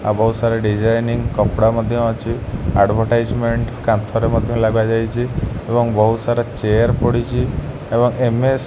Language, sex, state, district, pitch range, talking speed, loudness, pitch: Odia, male, Odisha, Khordha, 110-120 Hz, 125 wpm, -17 LUFS, 115 Hz